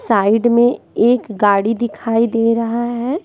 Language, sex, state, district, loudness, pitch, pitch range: Hindi, female, Bihar, West Champaran, -16 LUFS, 230 Hz, 225-240 Hz